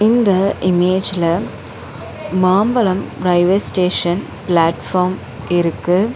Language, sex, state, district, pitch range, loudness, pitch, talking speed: Tamil, female, Tamil Nadu, Chennai, 175-195 Hz, -16 LUFS, 185 Hz, 70 wpm